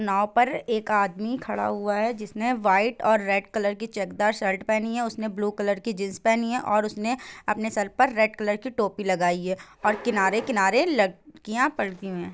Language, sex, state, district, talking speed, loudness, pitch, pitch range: Hindi, female, Bihar, Gopalganj, 190 wpm, -25 LUFS, 210 Hz, 200-230 Hz